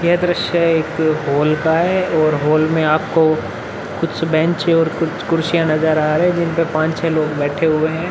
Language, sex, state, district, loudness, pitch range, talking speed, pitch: Hindi, male, Uttar Pradesh, Muzaffarnagar, -16 LUFS, 155-165 Hz, 190 wpm, 160 Hz